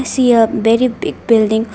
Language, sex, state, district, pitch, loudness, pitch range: English, female, Arunachal Pradesh, Lower Dibang Valley, 230 Hz, -13 LUFS, 225-245 Hz